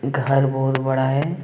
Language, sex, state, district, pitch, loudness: Hindi, male, Jharkhand, Deoghar, 135 Hz, -20 LUFS